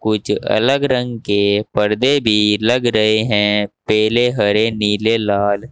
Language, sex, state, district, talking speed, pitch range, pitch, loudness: Hindi, male, Uttar Pradesh, Saharanpur, 135 wpm, 105-115 Hz, 110 Hz, -16 LUFS